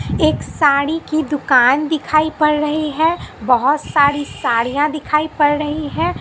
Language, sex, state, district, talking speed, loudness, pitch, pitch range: Hindi, female, Bihar, Katihar, 145 wpm, -16 LUFS, 300 Hz, 285-310 Hz